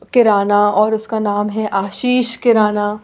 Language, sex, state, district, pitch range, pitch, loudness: Hindi, female, Bihar, Patna, 205-225 Hz, 210 Hz, -15 LUFS